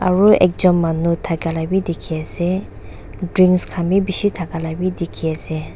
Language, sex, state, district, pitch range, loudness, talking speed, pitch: Nagamese, female, Nagaland, Dimapur, 160-185 Hz, -18 LUFS, 155 wpm, 170 Hz